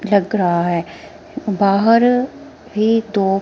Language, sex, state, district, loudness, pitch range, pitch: Hindi, female, Himachal Pradesh, Shimla, -16 LUFS, 195-245 Hz, 215 Hz